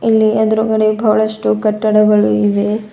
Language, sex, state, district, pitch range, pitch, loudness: Kannada, female, Karnataka, Bidar, 210-220 Hz, 215 Hz, -13 LUFS